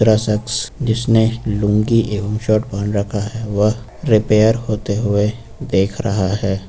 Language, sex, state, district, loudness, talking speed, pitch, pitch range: Hindi, male, Uttar Pradesh, Lucknow, -17 LUFS, 145 wpm, 105 Hz, 105-115 Hz